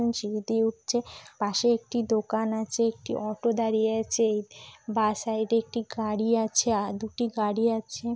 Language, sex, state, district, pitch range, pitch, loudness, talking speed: Bengali, female, West Bengal, Kolkata, 215-230 Hz, 225 Hz, -27 LUFS, 160 wpm